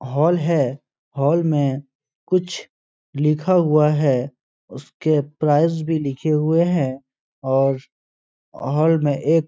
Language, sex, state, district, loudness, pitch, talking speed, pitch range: Hindi, male, Uttar Pradesh, Etah, -19 LUFS, 145 Hz, 120 wpm, 135-160 Hz